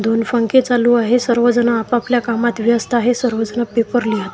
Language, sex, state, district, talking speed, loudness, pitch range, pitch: Marathi, male, Maharashtra, Washim, 180 wpm, -16 LUFS, 230-245 Hz, 235 Hz